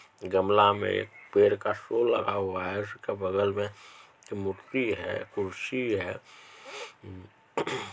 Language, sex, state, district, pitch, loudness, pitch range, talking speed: Maithili, male, Bihar, Supaul, 100 Hz, -29 LUFS, 95-110 Hz, 115 wpm